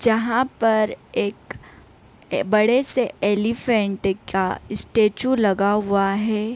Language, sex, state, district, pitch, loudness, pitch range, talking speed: Hindi, female, Jharkhand, Sahebganj, 215 Hz, -21 LUFS, 200-230 Hz, 110 wpm